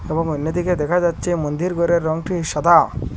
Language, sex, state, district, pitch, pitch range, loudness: Bengali, male, Assam, Hailakandi, 170 Hz, 160-175 Hz, -19 LUFS